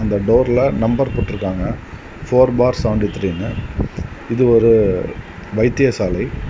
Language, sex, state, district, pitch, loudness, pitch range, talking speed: Tamil, male, Tamil Nadu, Kanyakumari, 115 Hz, -17 LUFS, 105-125 Hz, 100 wpm